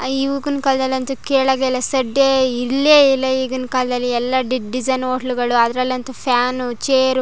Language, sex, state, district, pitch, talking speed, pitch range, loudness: Kannada, female, Karnataka, Chamarajanagar, 260 Hz, 140 wpm, 255-265 Hz, -17 LUFS